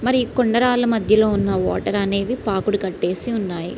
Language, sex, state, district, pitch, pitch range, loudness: Telugu, female, Andhra Pradesh, Srikakulam, 210 Hz, 195-240 Hz, -20 LUFS